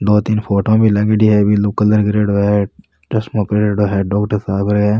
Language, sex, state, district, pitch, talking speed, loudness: Rajasthani, male, Rajasthan, Nagaur, 105 Hz, 190 wpm, -15 LUFS